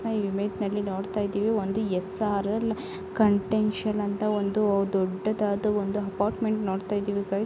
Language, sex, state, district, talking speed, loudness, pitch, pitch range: Kannada, female, Karnataka, Gulbarga, 130 wpm, -27 LUFS, 205 Hz, 195-210 Hz